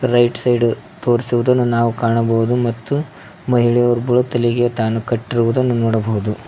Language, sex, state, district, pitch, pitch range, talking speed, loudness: Kannada, male, Karnataka, Koppal, 120 Hz, 115-125 Hz, 95 wpm, -17 LUFS